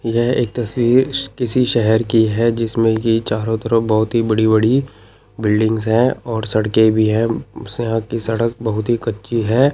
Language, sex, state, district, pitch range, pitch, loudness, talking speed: Hindi, male, Chandigarh, Chandigarh, 110-120 Hz, 115 Hz, -17 LUFS, 180 wpm